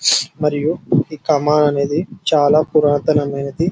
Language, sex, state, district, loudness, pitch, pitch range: Telugu, male, Telangana, Karimnagar, -16 LUFS, 150 Hz, 145-155 Hz